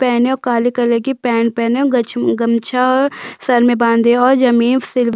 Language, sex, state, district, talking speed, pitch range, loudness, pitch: Hindi, female, Chhattisgarh, Sukma, 200 wpm, 235-255 Hz, -14 LUFS, 240 Hz